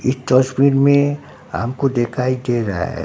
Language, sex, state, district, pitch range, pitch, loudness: Hindi, male, Bihar, Katihar, 120-135 Hz, 130 Hz, -17 LUFS